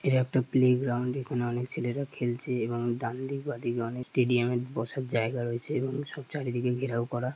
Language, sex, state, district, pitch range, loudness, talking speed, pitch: Bengali, male, West Bengal, Purulia, 120-130 Hz, -30 LUFS, 180 wpm, 125 Hz